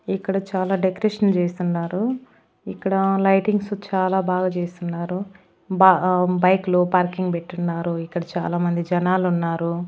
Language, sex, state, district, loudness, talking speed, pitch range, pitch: Telugu, female, Andhra Pradesh, Annamaya, -21 LUFS, 105 wpm, 175-195 Hz, 185 Hz